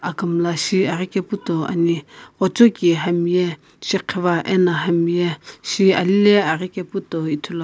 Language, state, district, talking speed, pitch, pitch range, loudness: Sumi, Nagaland, Kohima, 140 wpm, 175 Hz, 170-190 Hz, -19 LUFS